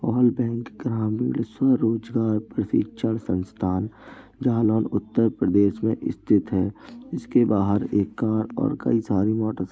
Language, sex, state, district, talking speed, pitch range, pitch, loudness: Hindi, male, Uttar Pradesh, Jalaun, 130 wpm, 100-115 Hz, 110 Hz, -23 LUFS